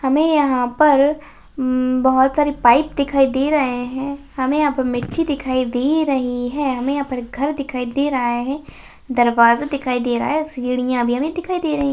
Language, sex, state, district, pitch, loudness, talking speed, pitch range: Hindi, female, Bihar, Jahanabad, 270 Hz, -18 LUFS, 200 wpm, 250-290 Hz